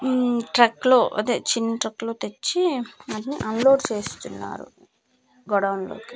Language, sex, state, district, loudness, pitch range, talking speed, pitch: Telugu, female, Andhra Pradesh, Manyam, -22 LUFS, 220-260 Hz, 175 wpm, 235 Hz